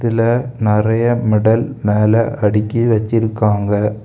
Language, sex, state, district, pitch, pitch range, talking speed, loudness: Tamil, male, Tamil Nadu, Kanyakumari, 110 Hz, 105-115 Hz, 90 wpm, -15 LUFS